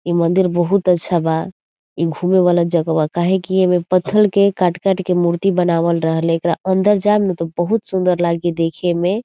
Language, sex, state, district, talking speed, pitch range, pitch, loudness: Bhojpuri, female, Bihar, Saran, 195 wpm, 170-190 Hz, 175 Hz, -16 LUFS